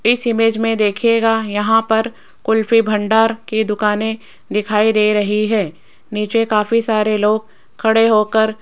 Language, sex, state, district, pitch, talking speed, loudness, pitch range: Hindi, female, Rajasthan, Jaipur, 220 Hz, 145 wpm, -16 LUFS, 210-225 Hz